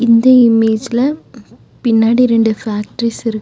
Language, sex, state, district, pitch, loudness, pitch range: Tamil, female, Tamil Nadu, Nilgiris, 230 Hz, -13 LUFS, 225-245 Hz